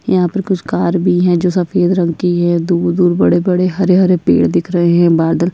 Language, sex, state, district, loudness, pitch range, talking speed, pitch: Hindi, female, Chhattisgarh, Sukma, -13 LUFS, 175-185 Hz, 270 wpm, 180 Hz